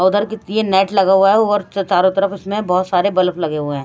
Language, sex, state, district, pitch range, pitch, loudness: Hindi, female, Haryana, Rohtak, 180-200 Hz, 195 Hz, -16 LUFS